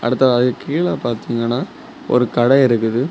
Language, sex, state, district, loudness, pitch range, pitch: Tamil, male, Tamil Nadu, Kanyakumari, -17 LUFS, 120-130 Hz, 125 Hz